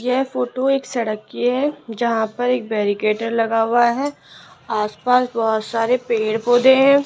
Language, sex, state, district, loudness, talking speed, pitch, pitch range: Hindi, female, Rajasthan, Jaipur, -19 LUFS, 170 wpm, 240 Hz, 225-255 Hz